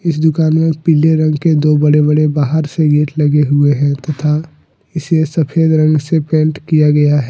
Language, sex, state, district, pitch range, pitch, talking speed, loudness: Hindi, male, Jharkhand, Deoghar, 150-160 Hz, 155 Hz, 195 wpm, -12 LUFS